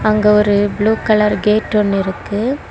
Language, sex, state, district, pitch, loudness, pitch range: Tamil, female, Tamil Nadu, Kanyakumari, 210 Hz, -15 LUFS, 205-215 Hz